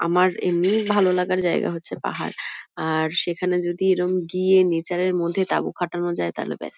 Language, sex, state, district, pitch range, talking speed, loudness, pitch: Bengali, female, West Bengal, Kolkata, 175-185 Hz, 175 wpm, -22 LUFS, 180 Hz